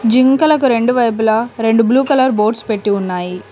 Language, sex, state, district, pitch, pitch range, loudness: Telugu, female, Telangana, Komaram Bheem, 230 Hz, 215-255 Hz, -14 LUFS